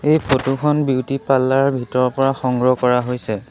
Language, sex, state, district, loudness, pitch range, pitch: Assamese, male, Assam, Sonitpur, -18 LUFS, 125-135 Hz, 130 Hz